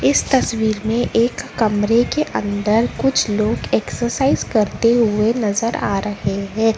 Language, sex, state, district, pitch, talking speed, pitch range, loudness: Hindi, female, Karnataka, Bangalore, 220 Hz, 140 wpm, 210-235 Hz, -18 LUFS